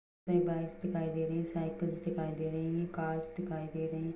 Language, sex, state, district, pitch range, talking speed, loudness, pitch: Hindi, female, Jharkhand, Jamtara, 160-170 Hz, 215 wpm, -36 LUFS, 165 Hz